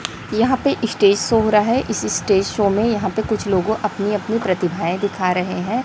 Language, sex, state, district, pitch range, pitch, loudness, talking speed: Hindi, female, Chhattisgarh, Raipur, 195-225 Hz, 210 Hz, -19 LUFS, 215 wpm